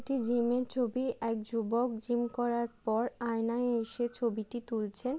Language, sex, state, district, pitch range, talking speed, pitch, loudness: Bengali, female, West Bengal, Jalpaiguri, 230-245 Hz, 140 wpm, 235 Hz, -33 LUFS